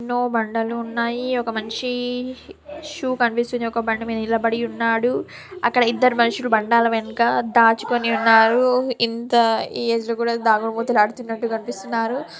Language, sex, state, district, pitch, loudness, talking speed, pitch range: Telugu, female, Telangana, Nalgonda, 235 Hz, -20 LUFS, 140 wpm, 230-245 Hz